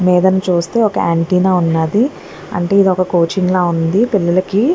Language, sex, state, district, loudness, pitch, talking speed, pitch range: Telugu, female, Andhra Pradesh, Guntur, -14 LUFS, 185 Hz, 150 wpm, 175-195 Hz